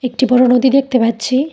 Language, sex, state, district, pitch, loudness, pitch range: Bengali, female, Tripura, Dhalai, 255 Hz, -13 LUFS, 245-260 Hz